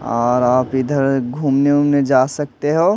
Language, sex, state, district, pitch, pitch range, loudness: Hindi, male, Delhi, New Delhi, 135 Hz, 130-145 Hz, -16 LUFS